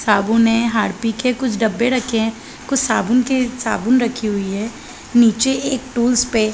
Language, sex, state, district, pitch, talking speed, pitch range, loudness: Hindi, female, Chhattisgarh, Balrampur, 235 Hz, 200 wpm, 220-250 Hz, -17 LUFS